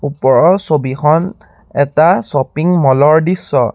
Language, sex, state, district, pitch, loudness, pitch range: Assamese, male, Assam, Sonitpur, 155 Hz, -12 LUFS, 140-175 Hz